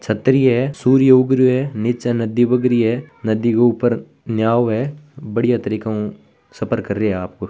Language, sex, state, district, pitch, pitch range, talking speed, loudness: Hindi, female, Rajasthan, Churu, 120 Hz, 110-130 Hz, 185 wpm, -17 LUFS